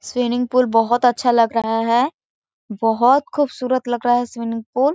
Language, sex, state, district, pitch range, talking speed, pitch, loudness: Hindi, female, Chhattisgarh, Korba, 230-255 Hz, 180 wpm, 245 Hz, -18 LUFS